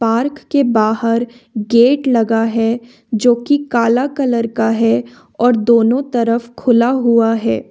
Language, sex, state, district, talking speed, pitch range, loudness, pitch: Hindi, female, Jharkhand, Ranchi, 140 wpm, 225-245 Hz, -15 LUFS, 235 Hz